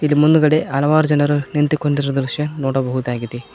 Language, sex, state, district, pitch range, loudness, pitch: Kannada, male, Karnataka, Koppal, 135-150 Hz, -17 LUFS, 145 Hz